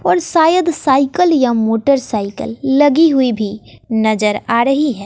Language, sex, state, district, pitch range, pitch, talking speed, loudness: Hindi, female, Bihar, West Champaran, 220-295 Hz, 265 Hz, 140 wpm, -14 LUFS